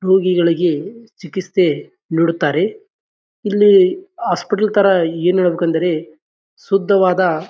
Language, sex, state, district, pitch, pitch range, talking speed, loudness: Kannada, male, Karnataka, Bijapur, 185 Hz, 170-205 Hz, 70 wpm, -16 LUFS